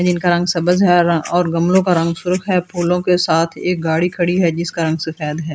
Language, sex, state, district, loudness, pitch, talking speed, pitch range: Hindi, female, Delhi, New Delhi, -16 LUFS, 175 Hz, 225 wpm, 165-180 Hz